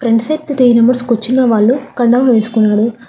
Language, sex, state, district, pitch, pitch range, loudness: Telugu, female, Telangana, Hyderabad, 235 Hz, 225-255 Hz, -12 LUFS